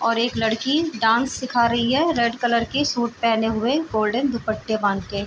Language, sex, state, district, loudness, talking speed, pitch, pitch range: Hindi, female, Chhattisgarh, Raigarh, -21 LUFS, 205 wpm, 235 Hz, 225-255 Hz